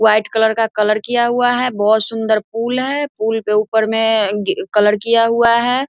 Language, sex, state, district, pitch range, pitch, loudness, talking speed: Hindi, female, Bihar, Vaishali, 215-235 Hz, 225 Hz, -16 LUFS, 205 wpm